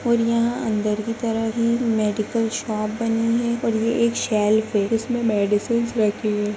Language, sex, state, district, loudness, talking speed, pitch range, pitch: Hindi, female, Bihar, Begusarai, -21 LUFS, 165 wpm, 215-235 Hz, 225 Hz